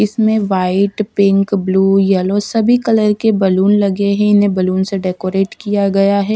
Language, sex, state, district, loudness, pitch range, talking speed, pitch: Hindi, female, Punjab, Kapurthala, -14 LUFS, 195-210 Hz, 170 wpm, 200 Hz